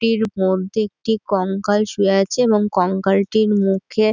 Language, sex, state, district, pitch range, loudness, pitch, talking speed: Bengali, female, West Bengal, Dakshin Dinajpur, 195-215 Hz, -18 LUFS, 205 Hz, 145 wpm